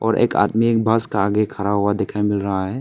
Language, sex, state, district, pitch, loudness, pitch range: Hindi, male, Arunachal Pradesh, Papum Pare, 105 Hz, -19 LUFS, 100-115 Hz